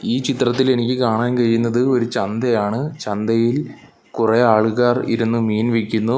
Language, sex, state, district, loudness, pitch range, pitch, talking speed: Malayalam, male, Kerala, Kollam, -18 LUFS, 115-125 Hz, 115 Hz, 125 wpm